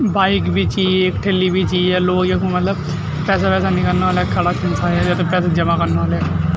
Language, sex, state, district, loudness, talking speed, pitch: Garhwali, male, Uttarakhand, Tehri Garhwal, -17 LUFS, 230 wpm, 175 Hz